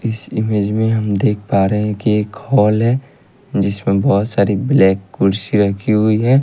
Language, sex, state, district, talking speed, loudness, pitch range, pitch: Hindi, male, Haryana, Rohtak, 185 wpm, -16 LUFS, 100-110 Hz, 105 Hz